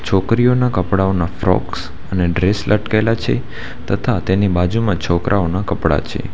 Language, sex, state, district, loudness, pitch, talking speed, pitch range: Gujarati, male, Gujarat, Valsad, -17 LUFS, 95 Hz, 125 wpm, 90-110 Hz